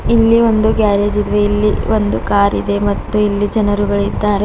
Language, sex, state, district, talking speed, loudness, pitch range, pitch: Kannada, female, Karnataka, Bidar, 160 wpm, -14 LUFS, 200-215 Hz, 205 Hz